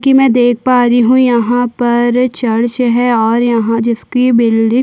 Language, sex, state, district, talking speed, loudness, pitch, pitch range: Hindi, female, Chhattisgarh, Sukma, 185 wpm, -11 LUFS, 240 Hz, 235-250 Hz